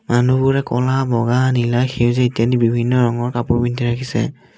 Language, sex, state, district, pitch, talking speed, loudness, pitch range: Assamese, male, Assam, Kamrup Metropolitan, 120 Hz, 145 wpm, -17 LUFS, 120-125 Hz